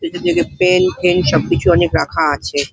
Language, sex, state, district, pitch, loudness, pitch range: Bengali, female, West Bengal, Paschim Medinipur, 180 Hz, -15 LUFS, 170-185 Hz